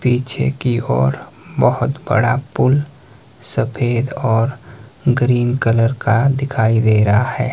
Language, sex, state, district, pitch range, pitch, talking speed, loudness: Hindi, male, Himachal Pradesh, Shimla, 115-130 Hz, 125 Hz, 120 wpm, -17 LUFS